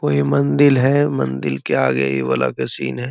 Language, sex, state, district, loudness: Magahi, male, Bihar, Gaya, -17 LUFS